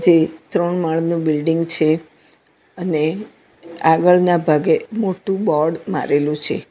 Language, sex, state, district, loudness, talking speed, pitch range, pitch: Gujarati, female, Gujarat, Valsad, -18 LUFS, 105 wpm, 155-180 Hz, 165 Hz